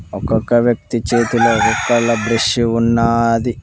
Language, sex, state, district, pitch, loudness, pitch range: Telugu, male, Telangana, Mahabubabad, 115 Hz, -15 LUFS, 115-120 Hz